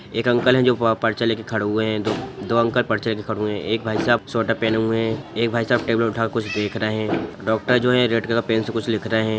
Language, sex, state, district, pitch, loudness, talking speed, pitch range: Hindi, male, Bihar, Sitamarhi, 115 Hz, -21 LUFS, 295 wpm, 110-115 Hz